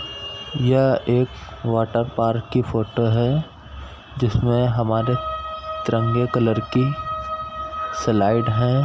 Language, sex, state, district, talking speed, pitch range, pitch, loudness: Hindi, male, Uttar Pradesh, Etah, 95 wpm, 115-140 Hz, 125 Hz, -21 LUFS